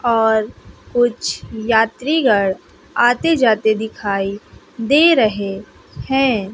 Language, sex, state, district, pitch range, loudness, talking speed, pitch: Hindi, female, Bihar, West Champaran, 210-250 Hz, -17 LUFS, 85 wpm, 225 Hz